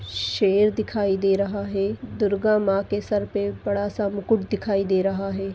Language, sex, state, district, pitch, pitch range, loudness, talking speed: Hindi, female, Chhattisgarh, Sarguja, 200 Hz, 195-205 Hz, -23 LUFS, 185 wpm